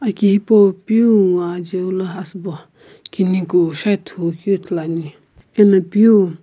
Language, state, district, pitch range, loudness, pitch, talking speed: Sumi, Nagaland, Kohima, 175-205 Hz, -16 LUFS, 185 Hz, 110 wpm